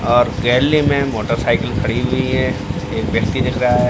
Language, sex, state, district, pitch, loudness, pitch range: Hindi, male, Bihar, Samastipur, 125 Hz, -17 LUFS, 115-130 Hz